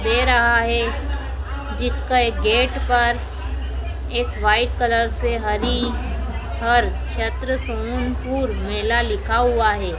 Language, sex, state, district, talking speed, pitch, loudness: Hindi, female, Madhya Pradesh, Dhar, 110 wpm, 230 Hz, -20 LUFS